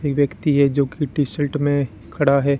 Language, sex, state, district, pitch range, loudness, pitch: Hindi, male, Rajasthan, Bikaner, 140-145 Hz, -20 LUFS, 140 Hz